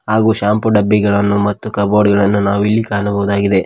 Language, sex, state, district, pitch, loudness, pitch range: Kannada, male, Karnataka, Koppal, 100 Hz, -14 LUFS, 100-105 Hz